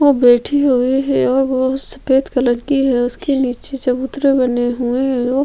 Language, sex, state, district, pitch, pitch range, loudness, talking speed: Hindi, female, Chhattisgarh, Sukma, 260 Hz, 245-270 Hz, -16 LUFS, 185 wpm